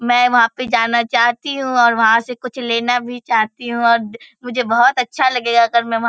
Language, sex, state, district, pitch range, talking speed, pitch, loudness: Hindi, female, Bihar, Purnia, 230-245 Hz, 225 wpm, 235 Hz, -15 LUFS